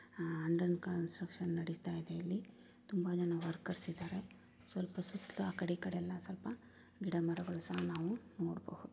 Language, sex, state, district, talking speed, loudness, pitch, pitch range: Kannada, female, Karnataka, Raichur, 115 wpm, -41 LUFS, 175 Hz, 170-185 Hz